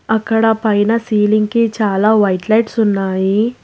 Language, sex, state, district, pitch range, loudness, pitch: Telugu, female, Telangana, Hyderabad, 205-225 Hz, -14 LUFS, 215 Hz